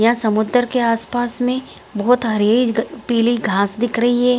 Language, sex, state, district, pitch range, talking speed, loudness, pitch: Hindi, female, Bihar, Gaya, 220-245 Hz, 180 wpm, -18 LUFS, 235 Hz